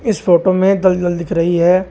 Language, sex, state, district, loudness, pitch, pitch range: Hindi, male, Uttar Pradesh, Shamli, -14 LUFS, 180 Hz, 175-190 Hz